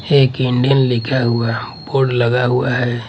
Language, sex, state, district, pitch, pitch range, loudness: Hindi, male, Odisha, Malkangiri, 125 Hz, 120-130 Hz, -16 LUFS